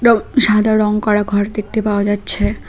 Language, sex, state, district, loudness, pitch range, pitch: Bengali, female, West Bengal, Cooch Behar, -15 LUFS, 205-215 Hz, 210 Hz